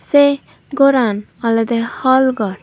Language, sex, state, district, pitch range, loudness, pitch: Chakma, female, Tripura, Unakoti, 225-275 Hz, -15 LUFS, 260 Hz